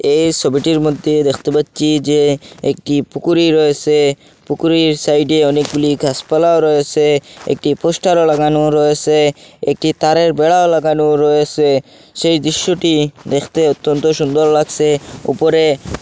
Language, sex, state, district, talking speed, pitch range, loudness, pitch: Bengali, male, Assam, Hailakandi, 110 wpm, 145-160 Hz, -14 LUFS, 150 Hz